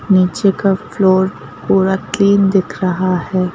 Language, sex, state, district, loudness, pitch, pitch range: Hindi, female, Madhya Pradesh, Bhopal, -14 LUFS, 190 Hz, 185-195 Hz